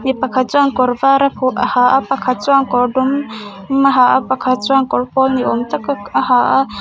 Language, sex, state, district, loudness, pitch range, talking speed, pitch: Mizo, female, Mizoram, Aizawl, -14 LUFS, 250-270 Hz, 220 wpm, 260 Hz